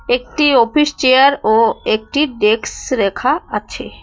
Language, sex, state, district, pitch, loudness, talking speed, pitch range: Bengali, female, West Bengal, Cooch Behar, 255 Hz, -14 LUFS, 120 wpm, 225-295 Hz